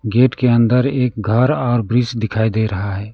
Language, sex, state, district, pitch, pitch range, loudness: Hindi, male, West Bengal, Alipurduar, 115 Hz, 110-125 Hz, -16 LUFS